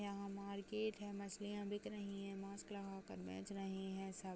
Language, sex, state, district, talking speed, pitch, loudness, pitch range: Hindi, female, Uttarakhand, Uttarkashi, 180 wpm, 200 Hz, -48 LUFS, 195-205 Hz